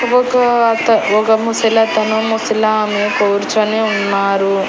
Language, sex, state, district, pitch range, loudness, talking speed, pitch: Telugu, female, Andhra Pradesh, Annamaya, 205-225 Hz, -14 LUFS, 90 wpm, 220 Hz